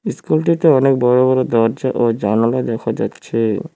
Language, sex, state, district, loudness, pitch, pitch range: Bengali, male, West Bengal, Cooch Behar, -16 LUFS, 125 Hz, 115-130 Hz